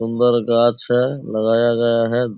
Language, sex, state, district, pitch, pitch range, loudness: Hindi, male, Bihar, Purnia, 120 Hz, 115-120 Hz, -17 LUFS